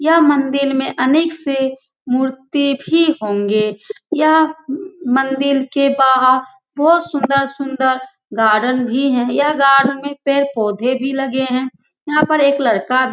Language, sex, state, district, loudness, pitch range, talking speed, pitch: Hindi, female, Bihar, Lakhisarai, -16 LUFS, 260-290 Hz, 135 wpm, 275 Hz